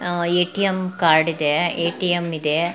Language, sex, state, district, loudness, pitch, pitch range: Kannada, female, Karnataka, Mysore, -19 LUFS, 170 Hz, 160-180 Hz